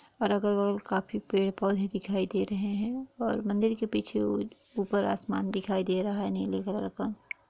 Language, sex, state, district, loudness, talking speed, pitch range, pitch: Hindi, female, Jharkhand, Sahebganj, -30 LUFS, 185 wpm, 190-210 Hz, 200 Hz